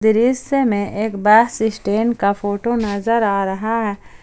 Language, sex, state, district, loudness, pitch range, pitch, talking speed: Hindi, female, Jharkhand, Ranchi, -18 LUFS, 205-230 Hz, 220 Hz, 155 wpm